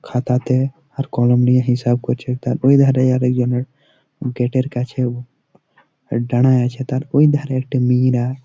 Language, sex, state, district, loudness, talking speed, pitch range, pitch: Bengali, male, West Bengal, Jalpaiguri, -17 LUFS, 155 wpm, 125-130 Hz, 130 Hz